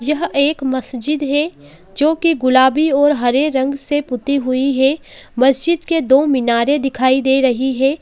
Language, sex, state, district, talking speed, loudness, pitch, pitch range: Hindi, female, Uttarakhand, Uttarkashi, 165 wpm, -15 LUFS, 270 Hz, 260-295 Hz